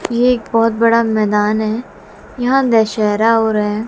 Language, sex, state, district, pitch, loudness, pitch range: Hindi, female, Haryana, Jhajjar, 225 Hz, -14 LUFS, 215-230 Hz